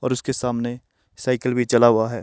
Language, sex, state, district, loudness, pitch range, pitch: Hindi, male, Himachal Pradesh, Shimla, -21 LUFS, 115-125 Hz, 120 Hz